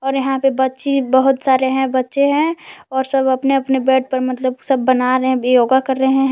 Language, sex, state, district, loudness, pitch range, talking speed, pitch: Hindi, female, Jharkhand, Palamu, -16 LUFS, 260-270 Hz, 200 wpm, 265 Hz